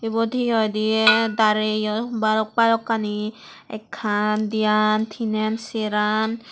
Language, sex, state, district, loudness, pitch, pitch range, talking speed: Chakma, female, Tripura, West Tripura, -21 LUFS, 215 Hz, 215-225 Hz, 100 wpm